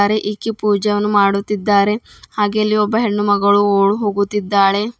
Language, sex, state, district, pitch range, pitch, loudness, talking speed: Kannada, female, Karnataka, Bidar, 200-210 Hz, 205 Hz, -16 LUFS, 155 wpm